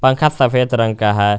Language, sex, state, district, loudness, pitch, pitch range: Hindi, male, Jharkhand, Garhwa, -15 LUFS, 125 Hz, 105-130 Hz